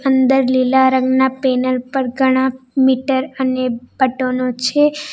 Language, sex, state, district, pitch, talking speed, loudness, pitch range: Gujarati, female, Gujarat, Valsad, 260 Hz, 130 wpm, -16 LUFS, 255-265 Hz